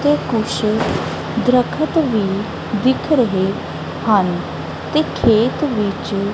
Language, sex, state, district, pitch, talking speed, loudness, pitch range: Punjabi, female, Punjab, Kapurthala, 225 Hz, 95 wpm, -18 LUFS, 205-260 Hz